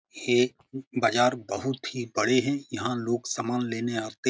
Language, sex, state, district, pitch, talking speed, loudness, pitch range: Hindi, male, Bihar, Saran, 125 Hz, 180 wpm, -27 LUFS, 120-130 Hz